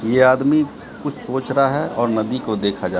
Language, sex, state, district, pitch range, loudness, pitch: Hindi, male, Bihar, Katihar, 110-135 Hz, -19 LUFS, 130 Hz